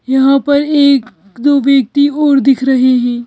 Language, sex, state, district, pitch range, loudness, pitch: Hindi, female, Madhya Pradesh, Bhopal, 255-285 Hz, -11 LUFS, 270 Hz